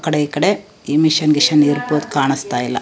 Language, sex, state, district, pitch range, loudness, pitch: Kannada, female, Karnataka, Shimoga, 145-155 Hz, -16 LUFS, 150 Hz